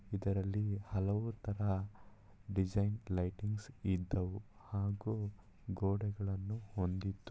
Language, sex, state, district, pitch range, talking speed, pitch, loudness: Kannada, male, Karnataka, Mysore, 95-105 Hz, 75 wpm, 100 Hz, -39 LUFS